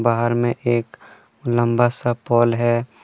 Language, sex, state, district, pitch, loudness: Hindi, male, Jharkhand, Deoghar, 120 Hz, -19 LUFS